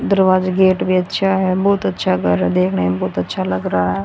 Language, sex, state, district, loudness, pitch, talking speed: Hindi, female, Haryana, Rohtak, -16 LUFS, 175 Hz, 235 wpm